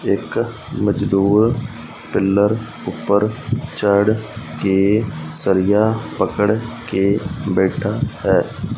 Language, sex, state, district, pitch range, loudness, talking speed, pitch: Punjabi, male, Punjab, Fazilka, 95-115 Hz, -18 LUFS, 75 wpm, 105 Hz